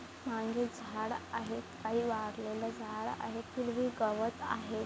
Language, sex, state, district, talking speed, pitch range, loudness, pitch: Marathi, female, Maharashtra, Chandrapur, 125 wpm, 220-235 Hz, -37 LUFS, 225 Hz